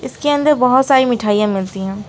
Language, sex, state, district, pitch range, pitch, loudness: Hindi, female, West Bengal, Alipurduar, 200-270 Hz, 245 Hz, -15 LUFS